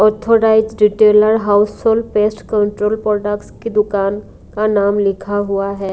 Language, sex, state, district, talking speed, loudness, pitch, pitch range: Hindi, female, Punjab, Kapurthala, 140 wpm, -15 LUFS, 210 Hz, 205-215 Hz